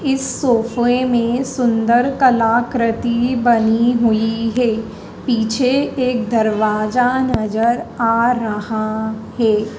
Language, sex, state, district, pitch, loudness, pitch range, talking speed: Hindi, female, Madhya Pradesh, Dhar, 235 Hz, -17 LUFS, 225-245 Hz, 90 wpm